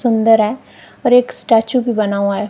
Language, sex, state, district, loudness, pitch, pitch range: Hindi, female, Punjab, Kapurthala, -15 LUFS, 225 Hz, 210-245 Hz